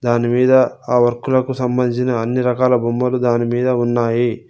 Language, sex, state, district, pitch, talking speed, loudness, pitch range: Telugu, male, Telangana, Mahabubabad, 125 Hz, 120 wpm, -16 LUFS, 120-125 Hz